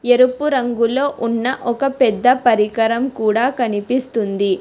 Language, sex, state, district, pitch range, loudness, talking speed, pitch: Telugu, female, Telangana, Hyderabad, 225-255 Hz, -17 LUFS, 105 wpm, 240 Hz